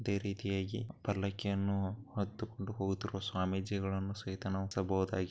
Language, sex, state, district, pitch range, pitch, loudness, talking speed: Kannada, male, Karnataka, Bijapur, 95-100 Hz, 100 Hz, -37 LUFS, 80 wpm